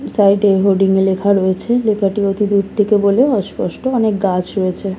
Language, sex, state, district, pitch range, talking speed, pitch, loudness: Bengali, female, West Bengal, Kolkata, 195-210 Hz, 170 wpm, 200 Hz, -15 LUFS